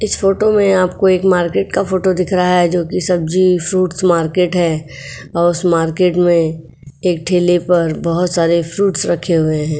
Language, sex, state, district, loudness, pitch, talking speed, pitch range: Hindi, female, Uttar Pradesh, Etah, -14 LUFS, 175 Hz, 185 wpm, 165-185 Hz